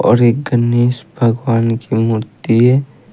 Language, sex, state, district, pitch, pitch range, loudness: Hindi, male, Haryana, Rohtak, 120 Hz, 115-125 Hz, -14 LUFS